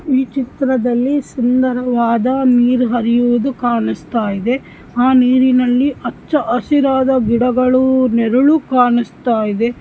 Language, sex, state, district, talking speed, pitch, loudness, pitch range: Kannada, female, Karnataka, Shimoga, 90 wpm, 250 Hz, -14 LUFS, 240-260 Hz